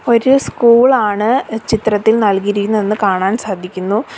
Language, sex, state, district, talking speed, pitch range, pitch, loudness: Malayalam, female, Kerala, Kollam, 85 wpm, 205-235 Hz, 215 Hz, -14 LUFS